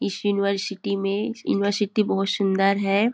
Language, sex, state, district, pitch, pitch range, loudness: Hindi, female, Chhattisgarh, Bilaspur, 200 Hz, 195-205 Hz, -23 LUFS